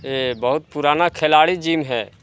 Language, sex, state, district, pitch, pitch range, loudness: Hindi, male, Chhattisgarh, Sarguja, 150 Hz, 125-155 Hz, -18 LUFS